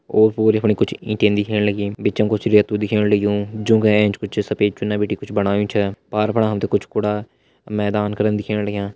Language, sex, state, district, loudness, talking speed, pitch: Hindi, male, Uttarakhand, Tehri Garhwal, -19 LUFS, 220 wpm, 105 Hz